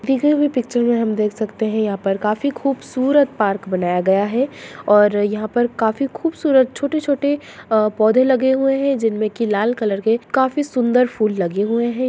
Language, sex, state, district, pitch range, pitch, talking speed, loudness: Hindi, female, Bihar, Lakhisarai, 215-270 Hz, 235 Hz, 185 wpm, -18 LUFS